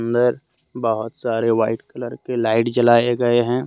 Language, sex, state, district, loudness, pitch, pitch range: Hindi, male, Jharkhand, Deoghar, -19 LUFS, 120 Hz, 115-125 Hz